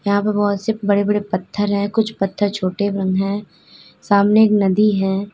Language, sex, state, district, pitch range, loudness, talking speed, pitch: Hindi, female, Uttar Pradesh, Lalitpur, 195-210 Hz, -18 LUFS, 190 wpm, 205 Hz